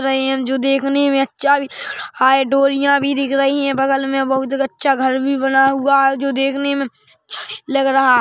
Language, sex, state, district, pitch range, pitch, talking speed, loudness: Hindi, female, Chhattisgarh, Rajnandgaon, 270-275 Hz, 275 Hz, 220 wpm, -16 LUFS